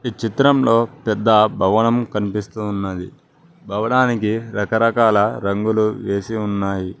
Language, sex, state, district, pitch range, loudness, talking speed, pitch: Telugu, male, Telangana, Mahabubabad, 100-115 Hz, -18 LUFS, 95 wpm, 110 Hz